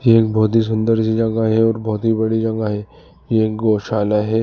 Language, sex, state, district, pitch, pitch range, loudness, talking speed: Hindi, male, Uttar Pradesh, Lalitpur, 110 Hz, 110-115 Hz, -17 LUFS, 245 wpm